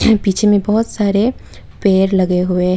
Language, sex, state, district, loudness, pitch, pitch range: Hindi, female, Tripura, West Tripura, -15 LUFS, 200 Hz, 185-210 Hz